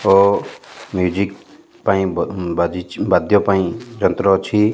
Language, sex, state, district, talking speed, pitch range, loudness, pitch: Odia, male, Odisha, Malkangiri, 115 wpm, 90-105 Hz, -18 LUFS, 95 Hz